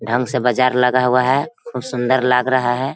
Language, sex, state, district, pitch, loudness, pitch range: Hindi, female, Bihar, Sitamarhi, 125 Hz, -17 LUFS, 125-130 Hz